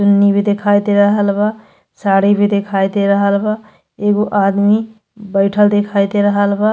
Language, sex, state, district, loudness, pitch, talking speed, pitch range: Bhojpuri, female, Uttar Pradesh, Ghazipur, -14 LUFS, 205 Hz, 160 wpm, 200-210 Hz